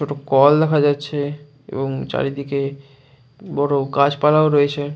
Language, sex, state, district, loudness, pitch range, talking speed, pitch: Bengali, male, West Bengal, Jalpaiguri, -18 LUFS, 140-145 Hz, 110 wpm, 140 Hz